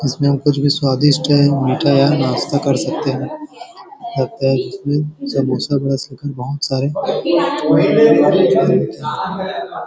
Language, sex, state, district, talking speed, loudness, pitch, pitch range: Hindi, male, Chhattisgarh, Bilaspur, 80 wpm, -16 LUFS, 145 Hz, 135-150 Hz